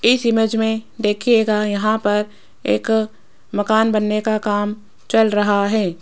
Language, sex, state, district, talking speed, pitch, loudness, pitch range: Hindi, female, Rajasthan, Jaipur, 140 wpm, 215 Hz, -18 LUFS, 205-220 Hz